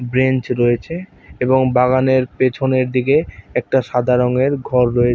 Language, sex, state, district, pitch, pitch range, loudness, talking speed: Bengali, male, West Bengal, Paschim Medinipur, 130 Hz, 125-130 Hz, -16 LUFS, 130 wpm